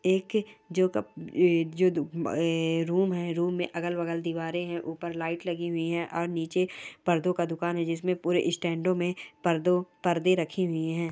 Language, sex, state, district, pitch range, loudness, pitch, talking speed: Hindi, female, Chhattisgarh, Sarguja, 165-180 Hz, -29 LUFS, 170 Hz, 160 wpm